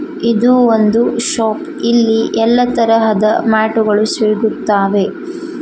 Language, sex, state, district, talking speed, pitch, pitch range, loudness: Kannada, female, Karnataka, Koppal, 95 wpm, 225 Hz, 220-245 Hz, -13 LUFS